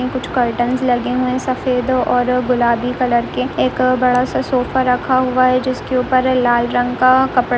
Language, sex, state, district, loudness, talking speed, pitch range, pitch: Hindi, female, Uttarakhand, Tehri Garhwal, -16 LUFS, 200 wpm, 245-255 Hz, 250 Hz